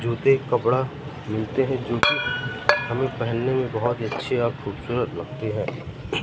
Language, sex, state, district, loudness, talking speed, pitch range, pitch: Hindi, male, Madhya Pradesh, Katni, -24 LUFS, 145 wpm, 115-135 Hz, 120 Hz